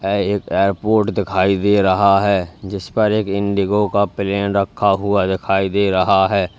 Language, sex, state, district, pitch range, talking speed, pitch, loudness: Hindi, male, Uttar Pradesh, Lalitpur, 95-100 Hz, 175 wpm, 100 Hz, -17 LUFS